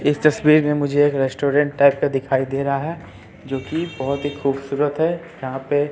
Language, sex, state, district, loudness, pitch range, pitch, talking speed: Hindi, male, Bihar, Katihar, -20 LUFS, 135-150 Hz, 145 Hz, 205 wpm